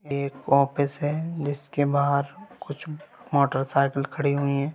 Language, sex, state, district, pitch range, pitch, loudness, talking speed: Hindi, male, Bihar, Gaya, 140-145 Hz, 140 Hz, -25 LUFS, 125 wpm